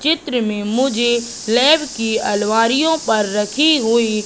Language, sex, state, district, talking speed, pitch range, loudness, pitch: Hindi, female, Madhya Pradesh, Katni, 125 wpm, 220-280 Hz, -16 LUFS, 235 Hz